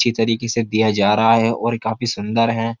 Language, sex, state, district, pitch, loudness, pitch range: Hindi, male, Uttar Pradesh, Jyotiba Phule Nagar, 115 Hz, -18 LUFS, 110-115 Hz